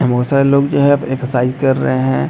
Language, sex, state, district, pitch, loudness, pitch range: Hindi, male, Bihar, Madhepura, 130 Hz, -14 LUFS, 125-140 Hz